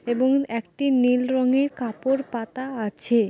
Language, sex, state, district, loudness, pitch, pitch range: Bengali, female, West Bengal, Dakshin Dinajpur, -23 LUFS, 250 Hz, 235-265 Hz